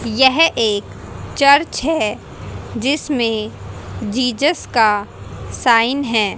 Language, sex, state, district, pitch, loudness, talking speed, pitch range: Hindi, female, Haryana, Jhajjar, 240 Hz, -16 LUFS, 85 wpm, 215-280 Hz